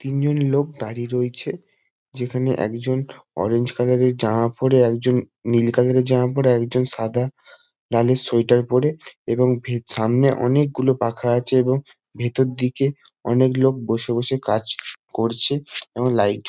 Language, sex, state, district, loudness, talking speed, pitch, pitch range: Bengali, male, West Bengal, Kolkata, -20 LUFS, 145 wpm, 125 Hz, 120-130 Hz